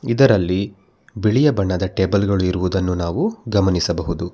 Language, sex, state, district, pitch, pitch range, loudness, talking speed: Kannada, male, Karnataka, Bangalore, 95 Hz, 90-110 Hz, -19 LUFS, 110 wpm